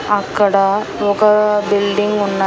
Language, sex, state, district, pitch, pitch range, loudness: Telugu, female, Andhra Pradesh, Annamaya, 205 Hz, 200-210 Hz, -15 LUFS